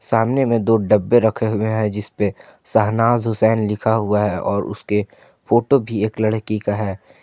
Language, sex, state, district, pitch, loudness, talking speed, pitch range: Hindi, male, Jharkhand, Palamu, 110 Hz, -18 LUFS, 175 wpm, 105-115 Hz